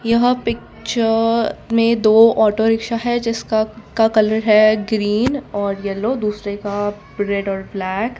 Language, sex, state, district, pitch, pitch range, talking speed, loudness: Hindi, female, Gujarat, Valsad, 220 Hz, 205-230 Hz, 145 wpm, -17 LUFS